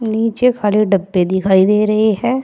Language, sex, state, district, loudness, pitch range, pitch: Hindi, female, Uttar Pradesh, Saharanpur, -14 LUFS, 195-225 Hz, 210 Hz